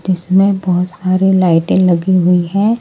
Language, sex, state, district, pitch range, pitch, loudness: Hindi, male, Delhi, New Delhi, 180-190 Hz, 185 Hz, -13 LUFS